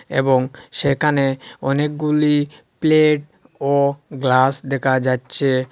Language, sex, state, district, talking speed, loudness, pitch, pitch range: Bengali, male, Assam, Hailakandi, 95 wpm, -18 LUFS, 140 Hz, 130-150 Hz